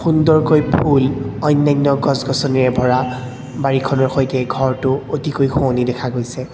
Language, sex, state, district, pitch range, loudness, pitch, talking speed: Assamese, male, Assam, Kamrup Metropolitan, 130-145 Hz, -16 LUFS, 135 Hz, 120 wpm